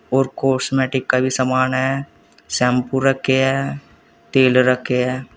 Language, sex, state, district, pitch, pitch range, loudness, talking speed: Hindi, male, Uttar Pradesh, Saharanpur, 130 Hz, 125-135 Hz, -18 LUFS, 135 wpm